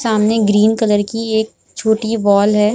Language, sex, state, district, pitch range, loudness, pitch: Hindi, female, Bihar, Supaul, 210-220 Hz, -15 LUFS, 220 Hz